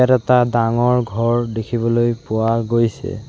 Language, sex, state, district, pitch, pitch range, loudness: Assamese, male, Assam, Sonitpur, 115 Hz, 115-120 Hz, -17 LUFS